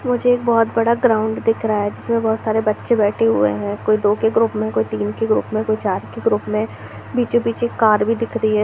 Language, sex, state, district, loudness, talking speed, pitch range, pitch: Hindi, female, Bihar, Bhagalpur, -18 LUFS, 255 wpm, 210-230 Hz, 220 Hz